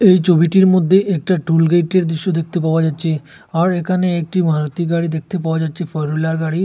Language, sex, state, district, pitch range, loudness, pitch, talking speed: Bengali, male, Assam, Hailakandi, 160-185 Hz, -16 LUFS, 170 Hz, 190 wpm